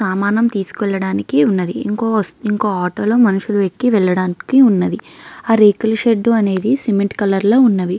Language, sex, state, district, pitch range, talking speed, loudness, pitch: Telugu, female, Andhra Pradesh, Krishna, 190-225 Hz, 135 wpm, -15 LUFS, 210 Hz